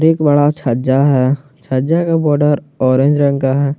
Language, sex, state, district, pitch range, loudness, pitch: Hindi, male, Jharkhand, Garhwa, 135-150 Hz, -14 LUFS, 145 Hz